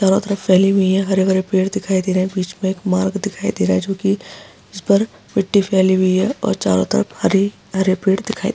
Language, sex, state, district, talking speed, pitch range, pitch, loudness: Hindi, female, Bihar, Araria, 245 wpm, 185-200 Hz, 190 Hz, -17 LUFS